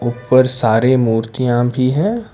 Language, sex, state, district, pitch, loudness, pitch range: Hindi, male, Karnataka, Bangalore, 125 Hz, -15 LUFS, 120-130 Hz